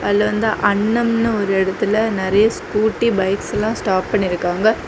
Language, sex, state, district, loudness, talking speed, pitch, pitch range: Tamil, female, Tamil Nadu, Kanyakumari, -18 LUFS, 135 wpm, 210 Hz, 195-220 Hz